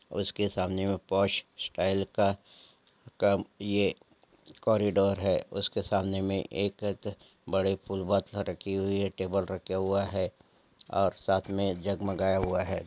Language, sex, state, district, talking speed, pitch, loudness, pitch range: Angika, male, Bihar, Samastipur, 120 wpm, 95 Hz, -30 LUFS, 95-100 Hz